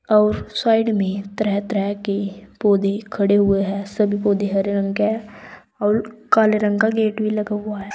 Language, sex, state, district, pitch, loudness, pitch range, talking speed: Hindi, female, Uttar Pradesh, Saharanpur, 210 Hz, -20 LUFS, 200-215 Hz, 190 wpm